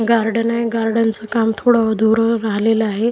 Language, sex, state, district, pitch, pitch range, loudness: Marathi, male, Maharashtra, Washim, 225 Hz, 220-230 Hz, -17 LUFS